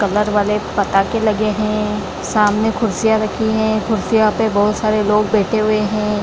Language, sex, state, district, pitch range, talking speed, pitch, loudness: Hindi, female, Bihar, Lakhisarai, 210-220 Hz, 165 wpm, 215 Hz, -16 LUFS